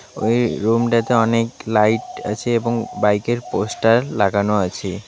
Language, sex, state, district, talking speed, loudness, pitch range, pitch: Bengali, male, West Bengal, Alipurduar, 130 wpm, -19 LUFS, 105-115 Hz, 115 Hz